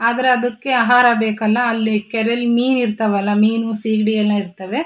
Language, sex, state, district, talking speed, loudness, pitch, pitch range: Kannada, female, Karnataka, Shimoga, 150 wpm, -17 LUFS, 225 Hz, 215-245 Hz